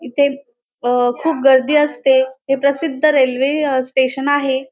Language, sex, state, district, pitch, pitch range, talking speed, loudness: Marathi, male, Maharashtra, Dhule, 275 Hz, 260-290 Hz, 125 wpm, -16 LUFS